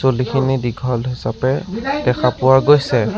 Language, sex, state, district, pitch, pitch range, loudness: Assamese, male, Assam, Sonitpur, 130 Hz, 125-135 Hz, -17 LUFS